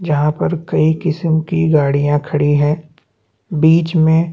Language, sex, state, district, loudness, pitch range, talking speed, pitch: Hindi, male, Chhattisgarh, Bastar, -15 LUFS, 145-165 Hz, 140 wpm, 155 Hz